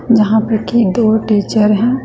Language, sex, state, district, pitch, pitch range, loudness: Hindi, female, Bihar, West Champaran, 220 Hz, 215-230 Hz, -13 LUFS